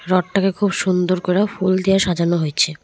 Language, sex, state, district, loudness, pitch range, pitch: Bengali, female, West Bengal, Cooch Behar, -18 LUFS, 175-195 Hz, 185 Hz